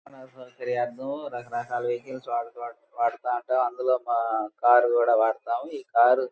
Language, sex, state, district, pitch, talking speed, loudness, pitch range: Telugu, male, Andhra Pradesh, Guntur, 120 Hz, 135 wpm, -25 LUFS, 120-130 Hz